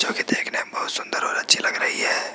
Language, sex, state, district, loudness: Hindi, male, Rajasthan, Jaipur, -22 LUFS